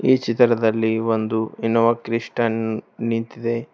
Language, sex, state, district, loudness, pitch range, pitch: Kannada, male, Karnataka, Bidar, -21 LUFS, 110-115 Hz, 115 Hz